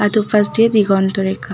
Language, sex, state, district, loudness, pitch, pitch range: Bengali, female, West Bengal, Malda, -15 LUFS, 210 Hz, 195-215 Hz